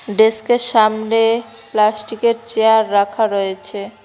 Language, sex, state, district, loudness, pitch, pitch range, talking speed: Bengali, female, West Bengal, Cooch Behar, -16 LUFS, 220 Hz, 210-225 Hz, 90 wpm